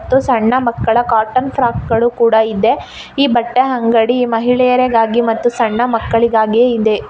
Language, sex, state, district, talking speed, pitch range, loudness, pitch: Kannada, female, Karnataka, Shimoga, 125 wpm, 225-250 Hz, -13 LUFS, 235 Hz